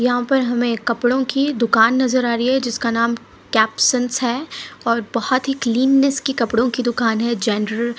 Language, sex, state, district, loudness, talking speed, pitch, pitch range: Hindi, female, Punjab, Pathankot, -18 LUFS, 195 wpm, 240 Hz, 235-260 Hz